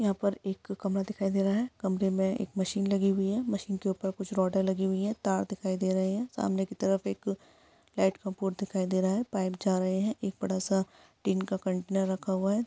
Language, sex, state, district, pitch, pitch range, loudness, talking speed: Hindi, female, Bihar, Jahanabad, 195 Hz, 190-200 Hz, -30 LUFS, 250 wpm